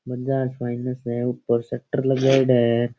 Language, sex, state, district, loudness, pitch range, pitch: Rajasthani, male, Rajasthan, Churu, -22 LUFS, 120-130 Hz, 125 Hz